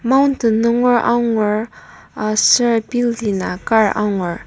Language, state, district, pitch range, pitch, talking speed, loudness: Ao, Nagaland, Kohima, 210-240 Hz, 225 Hz, 105 wpm, -16 LUFS